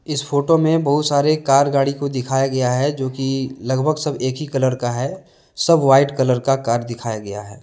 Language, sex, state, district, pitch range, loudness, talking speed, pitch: Hindi, male, Jharkhand, Deoghar, 130-145 Hz, -18 LUFS, 220 wpm, 135 Hz